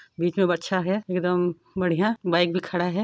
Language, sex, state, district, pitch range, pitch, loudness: Hindi, female, Chhattisgarh, Sarguja, 175-185 Hz, 180 Hz, -24 LUFS